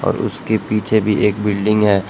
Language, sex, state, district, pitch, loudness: Hindi, male, Jharkhand, Palamu, 105 Hz, -17 LUFS